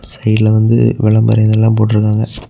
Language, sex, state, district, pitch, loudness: Tamil, male, Tamil Nadu, Kanyakumari, 110 Hz, -12 LUFS